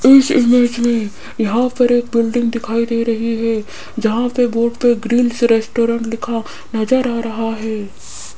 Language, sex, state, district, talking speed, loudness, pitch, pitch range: Hindi, female, Rajasthan, Jaipur, 160 wpm, -16 LUFS, 235 Hz, 225-240 Hz